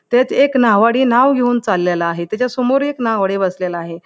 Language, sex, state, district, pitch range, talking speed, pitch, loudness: Marathi, female, Maharashtra, Pune, 180-255 Hz, 190 wpm, 235 Hz, -15 LUFS